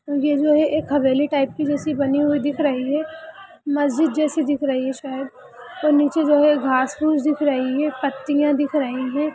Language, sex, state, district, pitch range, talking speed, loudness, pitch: Hindi, female, Bihar, Gaya, 275-300 Hz, 205 wpm, -20 LUFS, 290 Hz